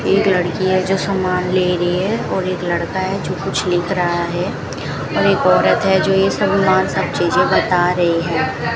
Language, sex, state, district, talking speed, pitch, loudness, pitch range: Hindi, female, Rajasthan, Bikaner, 205 wpm, 180 Hz, -17 LUFS, 175-190 Hz